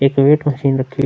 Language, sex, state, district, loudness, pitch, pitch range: Hindi, male, Bihar, Vaishali, -15 LUFS, 135 Hz, 135-140 Hz